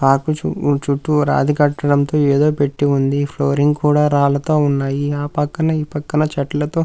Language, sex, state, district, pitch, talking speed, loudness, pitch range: Telugu, male, Andhra Pradesh, Krishna, 145 Hz, 175 wpm, -17 LUFS, 140-150 Hz